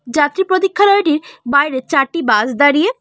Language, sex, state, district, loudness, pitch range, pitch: Bengali, female, West Bengal, Cooch Behar, -14 LUFS, 275-385 Hz, 295 Hz